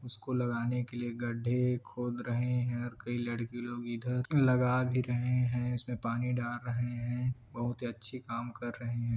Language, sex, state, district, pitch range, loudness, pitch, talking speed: Hindi, male, Chhattisgarh, Korba, 120-125 Hz, -34 LUFS, 120 Hz, 190 wpm